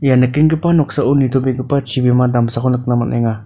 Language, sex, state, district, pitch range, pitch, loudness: Garo, male, Meghalaya, North Garo Hills, 125-140 Hz, 130 Hz, -15 LUFS